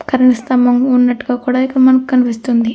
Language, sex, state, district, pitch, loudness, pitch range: Telugu, female, Andhra Pradesh, Krishna, 250 Hz, -12 LUFS, 245-260 Hz